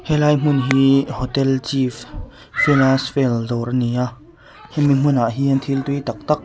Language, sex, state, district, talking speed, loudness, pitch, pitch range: Mizo, male, Mizoram, Aizawl, 165 wpm, -18 LUFS, 135 Hz, 125-140 Hz